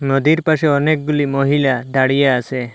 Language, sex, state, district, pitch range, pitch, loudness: Bengali, male, Assam, Hailakandi, 130-150 Hz, 140 Hz, -16 LUFS